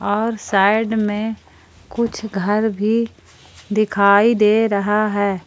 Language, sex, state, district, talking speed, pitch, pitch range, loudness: Hindi, female, Jharkhand, Palamu, 110 wpm, 210 Hz, 205-220 Hz, -18 LUFS